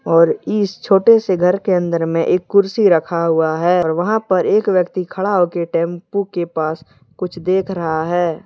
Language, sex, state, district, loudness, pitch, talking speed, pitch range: Hindi, male, Jharkhand, Deoghar, -16 LUFS, 180 Hz, 200 wpm, 165-190 Hz